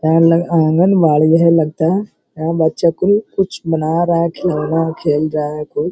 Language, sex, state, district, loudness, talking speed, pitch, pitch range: Hindi, male, Uttar Pradesh, Hamirpur, -15 LUFS, 180 wpm, 165 Hz, 155-170 Hz